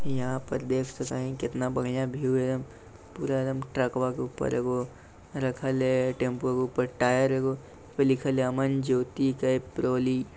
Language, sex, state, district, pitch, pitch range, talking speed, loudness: Maithili, male, Bihar, Lakhisarai, 130 Hz, 125-130 Hz, 175 wpm, -28 LUFS